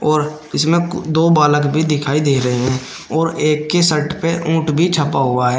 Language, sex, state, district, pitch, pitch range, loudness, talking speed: Hindi, male, Uttar Pradesh, Shamli, 150 Hz, 145-165 Hz, -16 LUFS, 205 wpm